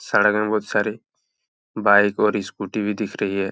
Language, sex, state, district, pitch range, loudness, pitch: Hindi, male, Uttar Pradesh, Jalaun, 100-105 Hz, -21 LUFS, 105 Hz